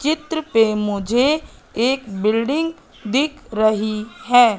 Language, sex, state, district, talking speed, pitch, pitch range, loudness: Hindi, female, Madhya Pradesh, Katni, 105 wpm, 235 Hz, 215-290 Hz, -19 LUFS